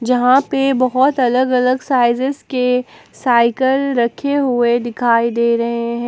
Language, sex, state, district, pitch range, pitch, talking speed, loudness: Hindi, female, Jharkhand, Ranchi, 235-260 Hz, 250 Hz, 140 wpm, -15 LUFS